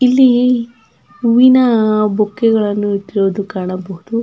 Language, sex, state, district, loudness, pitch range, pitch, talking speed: Kannada, female, Karnataka, Dakshina Kannada, -13 LUFS, 200-240 Hz, 215 Hz, 70 wpm